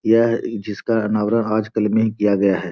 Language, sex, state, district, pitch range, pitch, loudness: Hindi, male, Bihar, Gopalganj, 105-110 Hz, 110 Hz, -19 LUFS